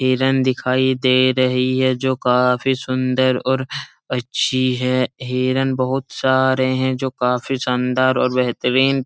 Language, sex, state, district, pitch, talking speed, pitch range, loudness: Hindi, male, Uttar Pradesh, Jalaun, 130 Hz, 140 wpm, 125-130 Hz, -18 LUFS